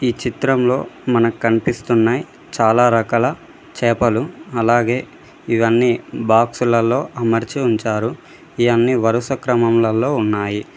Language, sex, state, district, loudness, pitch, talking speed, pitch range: Telugu, male, Telangana, Mahabubabad, -17 LUFS, 115 Hz, 95 wpm, 115-125 Hz